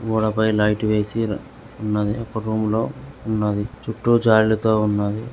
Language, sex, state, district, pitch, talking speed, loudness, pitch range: Telugu, male, Andhra Pradesh, Guntur, 110 Hz, 110 wpm, -21 LUFS, 105-110 Hz